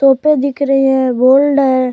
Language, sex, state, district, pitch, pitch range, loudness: Rajasthani, male, Rajasthan, Churu, 270 Hz, 260-280 Hz, -12 LUFS